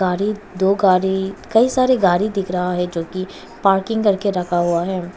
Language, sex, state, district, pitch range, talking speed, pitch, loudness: Hindi, female, Arunachal Pradesh, Papum Pare, 180-205 Hz, 185 wpm, 190 Hz, -18 LUFS